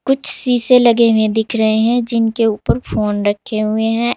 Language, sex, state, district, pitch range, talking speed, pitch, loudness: Hindi, female, Uttar Pradesh, Saharanpur, 220-240 Hz, 185 wpm, 225 Hz, -15 LUFS